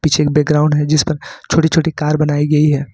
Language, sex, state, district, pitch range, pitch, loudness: Hindi, male, Jharkhand, Ranchi, 150-155 Hz, 150 Hz, -14 LUFS